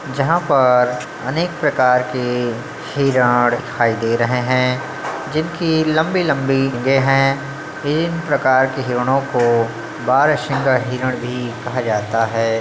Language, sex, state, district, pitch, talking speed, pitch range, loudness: Chhattisgarhi, male, Chhattisgarh, Bilaspur, 130 Hz, 130 wpm, 125-150 Hz, -17 LUFS